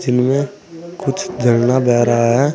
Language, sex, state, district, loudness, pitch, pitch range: Hindi, male, Uttar Pradesh, Saharanpur, -15 LUFS, 130 Hz, 120-150 Hz